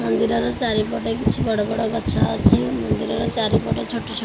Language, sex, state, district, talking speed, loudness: Odia, female, Odisha, Khordha, 170 wpm, -21 LUFS